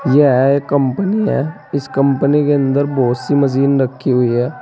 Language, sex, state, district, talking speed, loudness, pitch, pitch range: Hindi, male, Uttar Pradesh, Saharanpur, 180 wpm, -15 LUFS, 140 Hz, 130-145 Hz